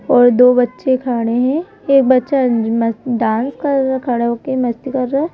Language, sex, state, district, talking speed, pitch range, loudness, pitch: Hindi, female, Madhya Pradesh, Bhopal, 190 wpm, 240-270 Hz, -15 LUFS, 255 Hz